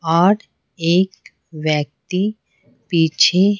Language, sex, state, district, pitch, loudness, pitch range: Hindi, female, Bihar, Patna, 175 Hz, -18 LUFS, 160-190 Hz